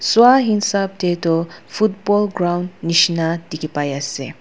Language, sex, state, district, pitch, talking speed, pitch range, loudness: Nagamese, female, Nagaland, Dimapur, 175 Hz, 135 wpm, 165-205 Hz, -18 LUFS